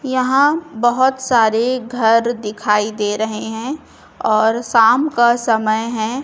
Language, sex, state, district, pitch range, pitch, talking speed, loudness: Hindi, female, Chhattisgarh, Raipur, 220-255 Hz, 230 Hz, 125 wpm, -16 LUFS